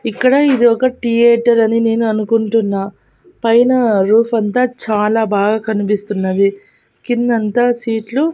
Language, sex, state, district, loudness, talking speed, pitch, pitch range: Telugu, female, Andhra Pradesh, Annamaya, -14 LUFS, 115 wpm, 230 Hz, 215-240 Hz